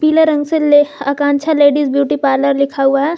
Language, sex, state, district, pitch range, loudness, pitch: Hindi, female, Jharkhand, Garhwa, 280-300 Hz, -13 LUFS, 285 Hz